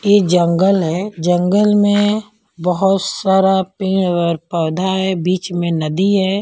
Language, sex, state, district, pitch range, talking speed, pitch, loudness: Hindi, female, Punjab, Pathankot, 175-195 Hz, 140 wpm, 190 Hz, -16 LUFS